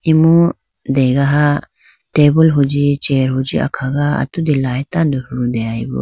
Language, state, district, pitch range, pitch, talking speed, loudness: Idu Mishmi, Arunachal Pradesh, Lower Dibang Valley, 130-150 Hz, 140 Hz, 110 wpm, -15 LUFS